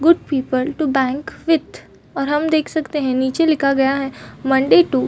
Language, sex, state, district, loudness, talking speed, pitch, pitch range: Hindi, female, Chhattisgarh, Bastar, -18 LUFS, 215 wpm, 275 Hz, 265-315 Hz